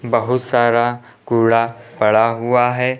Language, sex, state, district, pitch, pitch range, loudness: Hindi, male, Uttar Pradesh, Lucknow, 120 Hz, 115-125 Hz, -16 LUFS